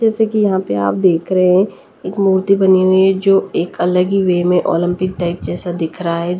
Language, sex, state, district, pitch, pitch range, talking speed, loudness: Hindi, female, Delhi, New Delhi, 185 Hz, 175-190 Hz, 235 wpm, -15 LUFS